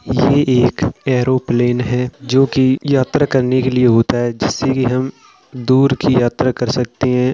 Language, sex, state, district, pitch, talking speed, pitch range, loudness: Hindi, male, Uttar Pradesh, Jalaun, 130 Hz, 170 wpm, 125-130 Hz, -15 LUFS